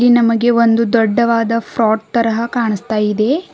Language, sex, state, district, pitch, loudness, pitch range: Kannada, female, Karnataka, Bidar, 230 Hz, -14 LUFS, 220-235 Hz